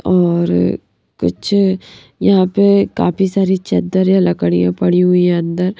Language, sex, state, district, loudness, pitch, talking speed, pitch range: Hindi, female, Madhya Pradesh, Bhopal, -14 LUFS, 180 Hz, 135 wpm, 170-190 Hz